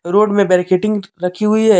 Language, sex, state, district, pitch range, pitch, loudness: Hindi, male, Jharkhand, Deoghar, 180-210 Hz, 200 Hz, -15 LUFS